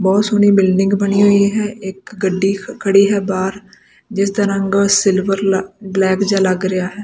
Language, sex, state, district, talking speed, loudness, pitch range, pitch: Punjabi, female, Punjab, Kapurthala, 180 wpm, -15 LUFS, 190-200 Hz, 195 Hz